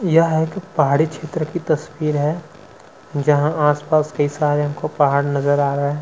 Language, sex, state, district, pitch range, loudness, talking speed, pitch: Hindi, male, Chhattisgarh, Sukma, 145-160 Hz, -19 LUFS, 200 wpm, 150 Hz